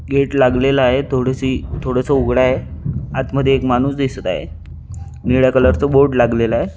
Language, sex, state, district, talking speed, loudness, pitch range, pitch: Marathi, male, Maharashtra, Chandrapur, 175 wpm, -16 LUFS, 120-135 Hz, 130 Hz